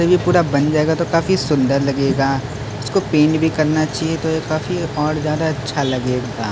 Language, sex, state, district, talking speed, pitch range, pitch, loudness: Hindi, male, Maharashtra, Mumbai Suburban, 200 wpm, 135-160 Hz, 150 Hz, -18 LUFS